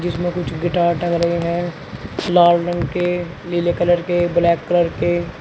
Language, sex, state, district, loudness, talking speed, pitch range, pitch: Hindi, male, Uttar Pradesh, Shamli, -18 LUFS, 165 wpm, 170-175 Hz, 175 Hz